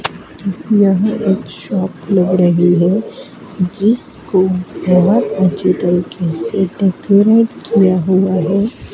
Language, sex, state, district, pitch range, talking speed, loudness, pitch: Hindi, female, Madhya Pradesh, Dhar, 180-200 Hz, 100 wpm, -14 LUFS, 190 Hz